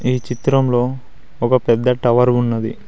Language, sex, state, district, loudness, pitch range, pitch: Telugu, male, Telangana, Mahabubabad, -17 LUFS, 120-125 Hz, 125 Hz